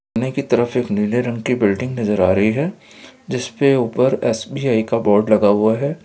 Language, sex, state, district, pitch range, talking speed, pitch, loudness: Hindi, male, Bihar, Kishanganj, 105-125 Hz, 190 wpm, 115 Hz, -18 LUFS